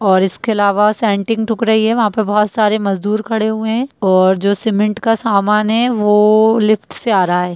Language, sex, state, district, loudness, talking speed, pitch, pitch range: Hindi, female, Bihar, Jamui, -14 LUFS, 215 wpm, 215 Hz, 200-225 Hz